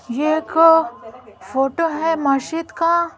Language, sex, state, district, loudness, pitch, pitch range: Hindi, female, Bihar, Patna, -18 LUFS, 320 Hz, 270-330 Hz